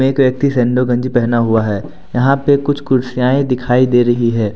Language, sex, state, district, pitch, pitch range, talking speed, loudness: Hindi, male, Jharkhand, Deoghar, 125 Hz, 120-135 Hz, 195 wpm, -14 LUFS